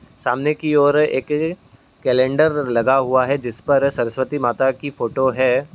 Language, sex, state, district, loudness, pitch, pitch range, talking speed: Hindi, male, Uttar Pradesh, Muzaffarnagar, -18 LUFS, 135 Hz, 130-145 Hz, 155 wpm